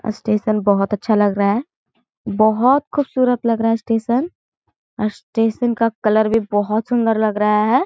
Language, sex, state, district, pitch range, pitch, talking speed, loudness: Hindi, female, Chhattisgarh, Korba, 210-240 Hz, 225 Hz, 160 wpm, -18 LUFS